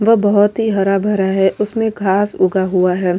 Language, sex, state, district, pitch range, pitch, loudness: Hindi, female, Goa, North and South Goa, 190-210 Hz, 200 Hz, -15 LUFS